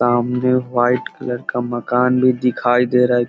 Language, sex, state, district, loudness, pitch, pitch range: Hindi, male, Bihar, Purnia, -17 LUFS, 125 Hz, 120-125 Hz